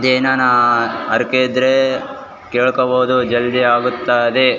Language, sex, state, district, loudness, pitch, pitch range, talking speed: Kannada, male, Karnataka, Raichur, -15 LUFS, 125 Hz, 120-130 Hz, 80 wpm